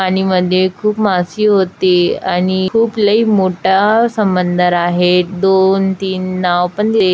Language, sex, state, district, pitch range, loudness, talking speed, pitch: Marathi, female, Maharashtra, Chandrapur, 180-205 Hz, -13 LUFS, 125 wpm, 190 Hz